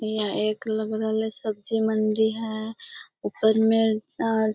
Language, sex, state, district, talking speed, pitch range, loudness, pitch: Hindi, female, Bihar, Begusarai, 130 wpm, 215-225 Hz, -25 LUFS, 220 Hz